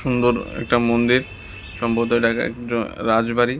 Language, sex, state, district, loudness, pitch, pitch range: Bengali, male, Tripura, West Tripura, -20 LUFS, 115 Hz, 115-120 Hz